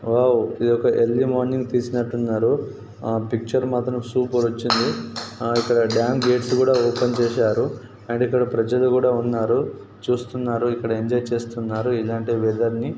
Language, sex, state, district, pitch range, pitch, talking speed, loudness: Telugu, male, Telangana, Nalgonda, 115-125 Hz, 120 Hz, 135 wpm, -21 LUFS